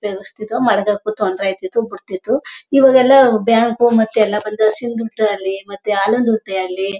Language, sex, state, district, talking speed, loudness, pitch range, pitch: Kannada, male, Karnataka, Mysore, 145 wpm, -16 LUFS, 195-230 Hz, 215 Hz